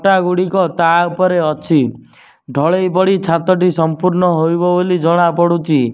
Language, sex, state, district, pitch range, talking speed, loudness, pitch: Odia, male, Odisha, Nuapada, 165-180 Hz, 140 wpm, -14 LUFS, 175 Hz